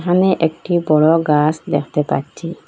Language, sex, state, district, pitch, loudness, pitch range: Bengali, female, Assam, Hailakandi, 160 Hz, -16 LUFS, 150-170 Hz